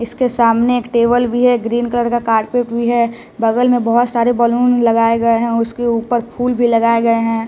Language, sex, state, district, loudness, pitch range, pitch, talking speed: Hindi, male, Bihar, West Champaran, -14 LUFS, 230-245 Hz, 235 Hz, 215 wpm